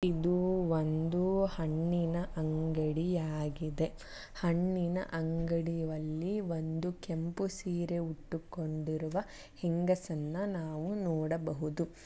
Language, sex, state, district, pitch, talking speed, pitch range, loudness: Kannada, female, Karnataka, Mysore, 165 Hz, 65 wpm, 160-180 Hz, -35 LUFS